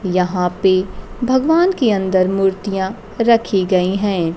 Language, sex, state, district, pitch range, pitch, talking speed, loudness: Hindi, female, Bihar, Kaimur, 185-225 Hz, 195 Hz, 125 wpm, -16 LUFS